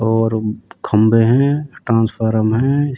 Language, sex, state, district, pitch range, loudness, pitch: Hindi, male, Uttar Pradesh, Jyotiba Phule Nagar, 110-135 Hz, -16 LUFS, 115 Hz